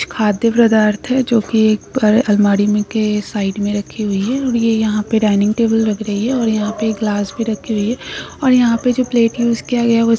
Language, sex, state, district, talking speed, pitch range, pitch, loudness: Hindi, female, West Bengal, Jhargram, 240 wpm, 210-235 Hz, 220 Hz, -15 LUFS